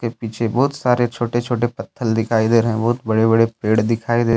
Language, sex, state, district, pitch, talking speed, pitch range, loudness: Hindi, male, Jharkhand, Deoghar, 115 Hz, 220 wpm, 115-120 Hz, -18 LUFS